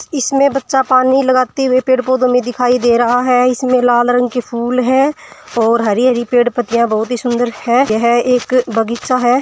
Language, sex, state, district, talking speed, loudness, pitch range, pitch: Marwari, female, Rajasthan, Churu, 195 wpm, -13 LUFS, 240-255 Hz, 250 Hz